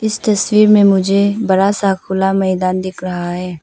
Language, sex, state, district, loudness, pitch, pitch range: Hindi, female, Arunachal Pradesh, Papum Pare, -14 LUFS, 195 Hz, 185-205 Hz